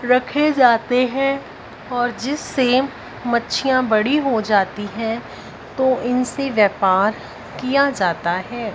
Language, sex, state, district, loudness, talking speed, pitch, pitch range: Hindi, female, Punjab, Fazilka, -19 LUFS, 110 wpm, 245 Hz, 215-265 Hz